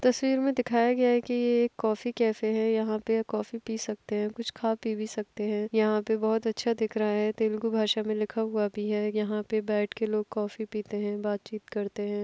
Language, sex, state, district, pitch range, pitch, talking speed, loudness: Hindi, female, Bihar, Kishanganj, 210-225 Hz, 220 Hz, 230 wpm, -29 LUFS